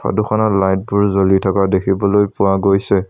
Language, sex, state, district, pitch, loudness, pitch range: Assamese, male, Assam, Sonitpur, 100 Hz, -15 LUFS, 95-100 Hz